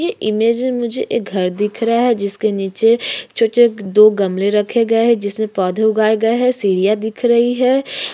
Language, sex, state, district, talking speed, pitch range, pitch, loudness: Hindi, female, Uttarakhand, Tehri Garhwal, 190 wpm, 205-235 Hz, 220 Hz, -15 LUFS